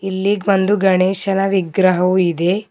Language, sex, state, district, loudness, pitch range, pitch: Kannada, female, Karnataka, Bidar, -16 LUFS, 185-195 Hz, 190 Hz